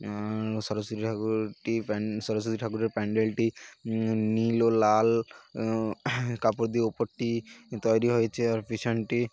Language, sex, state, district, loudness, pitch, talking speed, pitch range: Bengali, male, West Bengal, Paschim Medinipur, -28 LUFS, 110 Hz, 105 wpm, 110-115 Hz